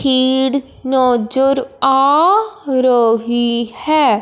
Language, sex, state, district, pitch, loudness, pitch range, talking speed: Hindi, male, Punjab, Fazilka, 265 Hz, -14 LUFS, 245-275 Hz, 70 wpm